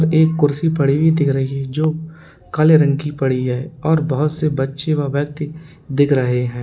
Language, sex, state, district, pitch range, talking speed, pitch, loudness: Hindi, male, Uttar Pradesh, Lalitpur, 135-155 Hz, 200 wpm, 150 Hz, -17 LUFS